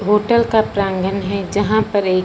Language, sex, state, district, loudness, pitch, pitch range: Hindi, female, Punjab, Fazilka, -17 LUFS, 205 Hz, 195-215 Hz